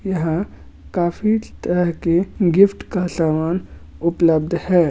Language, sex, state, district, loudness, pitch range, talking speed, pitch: Hindi, male, Bihar, Gaya, -19 LUFS, 170-185 Hz, 110 wpm, 175 Hz